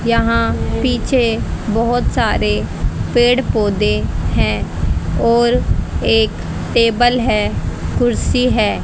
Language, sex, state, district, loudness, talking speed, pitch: Hindi, female, Haryana, Rohtak, -16 LUFS, 90 wpm, 220 Hz